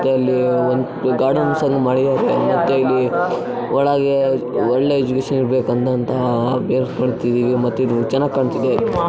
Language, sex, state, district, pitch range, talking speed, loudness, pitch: Kannada, male, Karnataka, Chamarajanagar, 125-135 Hz, 110 wpm, -17 LUFS, 130 Hz